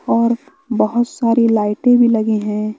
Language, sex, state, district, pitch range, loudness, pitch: Hindi, male, Bihar, West Champaran, 215-240 Hz, -16 LUFS, 230 Hz